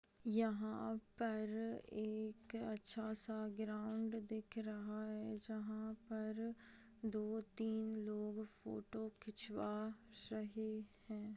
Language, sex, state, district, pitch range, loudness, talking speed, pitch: Hindi, female, Bihar, Purnia, 215-220 Hz, -46 LUFS, 100 wpm, 220 Hz